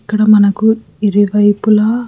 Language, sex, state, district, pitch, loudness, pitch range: Telugu, male, Telangana, Karimnagar, 210 Hz, -11 LUFS, 205-220 Hz